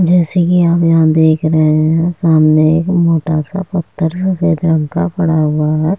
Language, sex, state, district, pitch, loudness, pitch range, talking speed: Hindi, female, Uttar Pradesh, Muzaffarnagar, 165 Hz, -13 LUFS, 155-175 Hz, 180 wpm